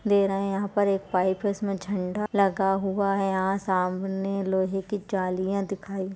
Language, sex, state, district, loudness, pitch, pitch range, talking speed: Hindi, female, Chhattisgarh, Balrampur, -26 LUFS, 195 Hz, 190-200 Hz, 195 wpm